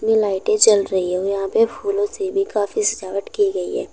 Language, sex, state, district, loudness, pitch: Hindi, female, Uttar Pradesh, Saharanpur, -19 LUFS, 215 Hz